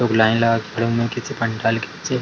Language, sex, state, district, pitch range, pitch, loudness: Hindi, male, Bihar, Darbhanga, 110-120 Hz, 115 Hz, -20 LUFS